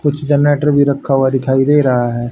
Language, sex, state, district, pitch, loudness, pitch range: Hindi, male, Haryana, Rohtak, 140 Hz, -13 LUFS, 130-145 Hz